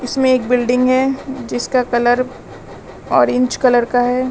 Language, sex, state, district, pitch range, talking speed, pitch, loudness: Hindi, female, Uttar Pradesh, Lalitpur, 245-255 Hz, 140 wpm, 250 Hz, -16 LUFS